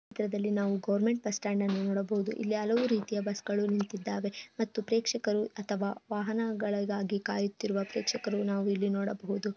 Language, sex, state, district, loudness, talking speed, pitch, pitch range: Kannada, female, Karnataka, Chamarajanagar, -32 LUFS, 140 wpm, 205 Hz, 200-220 Hz